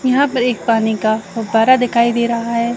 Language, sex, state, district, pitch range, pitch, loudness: Hindi, female, Chhattisgarh, Raigarh, 225-245 Hz, 235 Hz, -15 LUFS